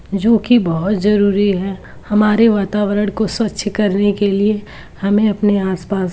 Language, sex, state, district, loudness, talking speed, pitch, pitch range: Hindi, female, Uttar Pradesh, Varanasi, -15 LUFS, 145 wpm, 205 Hz, 200-210 Hz